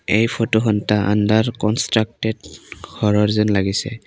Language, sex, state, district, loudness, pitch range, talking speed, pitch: Assamese, male, Assam, Kamrup Metropolitan, -18 LUFS, 105-115 Hz, 120 wpm, 110 Hz